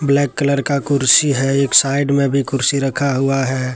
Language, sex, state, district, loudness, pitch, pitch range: Hindi, male, Jharkhand, Deoghar, -15 LUFS, 140 Hz, 135-140 Hz